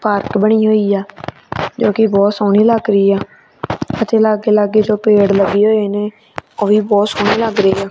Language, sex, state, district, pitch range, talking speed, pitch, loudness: Punjabi, female, Punjab, Kapurthala, 200-215 Hz, 195 wpm, 210 Hz, -13 LUFS